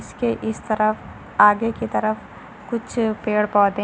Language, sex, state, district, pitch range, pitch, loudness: Hindi, female, Uttar Pradesh, Lucknow, 210-225 Hz, 215 Hz, -21 LUFS